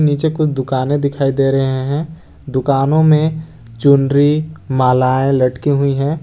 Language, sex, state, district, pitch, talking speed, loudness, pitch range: Hindi, male, Jharkhand, Garhwa, 140 Hz, 135 wpm, -15 LUFS, 135-150 Hz